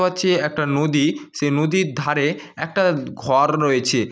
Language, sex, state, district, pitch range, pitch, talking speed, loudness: Bengali, male, West Bengal, North 24 Parganas, 145-180 Hz, 150 Hz, 145 wpm, -20 LUFS